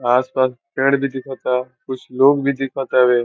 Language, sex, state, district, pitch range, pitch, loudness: Bhojpuri, male, Bihar, Saran, 125-135 Hz, 130 Hz, -19 LUFS